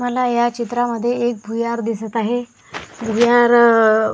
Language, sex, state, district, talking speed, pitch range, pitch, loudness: Marathi, male, Maharashtra, Washim, 130 wpm, 230-240 Hz, 235 Hz, -17 LUFS